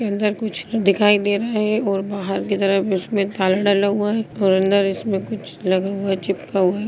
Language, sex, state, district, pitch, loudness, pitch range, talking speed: Hindi, female, Bihar, Begusarai, 200 Hz, -20 LUFS, 195-210 Hz, 220 wpm